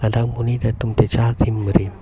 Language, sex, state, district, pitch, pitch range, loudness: Karbi, male, Assam, Karbi Anglong, 115 Hz, 110-115 Hz, -19 LUFS